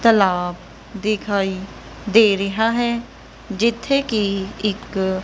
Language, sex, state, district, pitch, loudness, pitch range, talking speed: Punjabi, female, Punjab, Kapurthala, 205 Hz, -20 LUFS, 195-225 Hz, 105 wpm